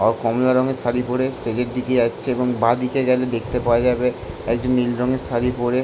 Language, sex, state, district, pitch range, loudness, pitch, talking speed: Bengali, male, West Bengal, Jalpaiguri, 120-125 Hz, -20 LUFS, 125 Hz, 205 wpm